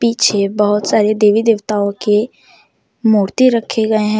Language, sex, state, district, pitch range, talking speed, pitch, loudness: Hindi, female, Jharkhand, Deoghar, 210-225 Hz, 145 wpm, 215 Hz, -14 LUFS